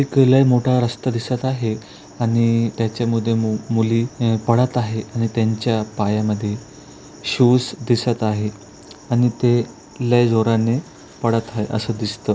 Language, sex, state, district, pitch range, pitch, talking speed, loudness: Marathi, male, Maharashtra, Aurangabad, 110-120 Hz, 115 Hz, 130 wpm, -19 LUFS